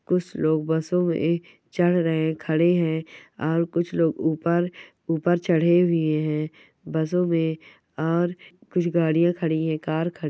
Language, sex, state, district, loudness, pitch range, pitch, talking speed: Hindi, female, Uttar Pradesh, Hamirpur, -23 LUFS, 160-175 Hz, 165 Hz, 155 wpm